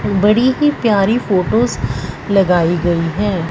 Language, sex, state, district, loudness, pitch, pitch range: Hindi, female, Punjab, Fazilka, -15 LUFS, 200 Hz, 175-230 Hz